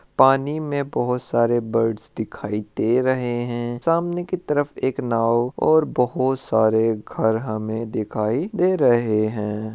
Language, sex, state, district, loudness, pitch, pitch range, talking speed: Hindi, male, Rajasthan, Churu, -21 LUFS, 120 Hz, 110-135 Hz, 135 wpm